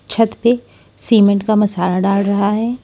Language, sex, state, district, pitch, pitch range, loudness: Hindi, female, Maharashtra, Washim, 210 Hz, 200-225 Hz, -15 LUFS